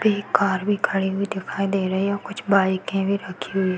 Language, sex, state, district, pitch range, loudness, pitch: Hindi, female, Uttar Pradesh, Varanasi, 190-200 Hz, -23 LUFS, 195 Hz